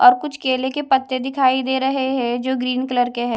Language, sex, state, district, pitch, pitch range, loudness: Hindi, female, Odisha, Malkangiri, 260 Hz, 255-265 Hz, -19 LUFS